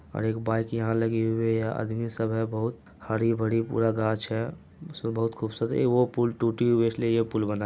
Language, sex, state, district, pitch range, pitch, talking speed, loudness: Hindi, male, Bihar, Araria, 110-115 Hz, 115 Hz, 220 wpm, -27 LUFS